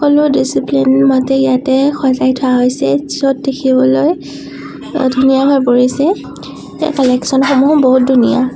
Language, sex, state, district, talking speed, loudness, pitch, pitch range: Assamese, female, Assam, Sonitpur, 120 wpm, -12 LUFS, 265 Hz, 250-275 Hz